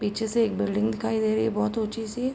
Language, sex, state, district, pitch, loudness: Hindi, female, Uttar Pradesh, Gorakhpur, 205 Hz, -26 LUFS